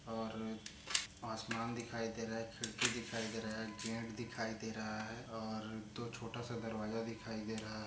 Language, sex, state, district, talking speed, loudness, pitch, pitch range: Hindi, male, Maharashtra, Aurangabad, 185 wpm, -42 LUFS, 115 Hz, 110-115 Hz